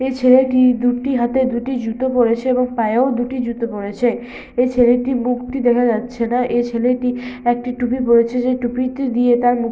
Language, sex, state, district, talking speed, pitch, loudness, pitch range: Bengali, female, West Bengal, Malda, 185 wpm, 245 Hz, -17 LUFS, 240-255 Hz